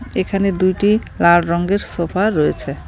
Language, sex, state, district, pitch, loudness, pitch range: Bengali, female, West Bengal, Cooch Behar, 190 Hz, -17 LUFS, 170-200 Hz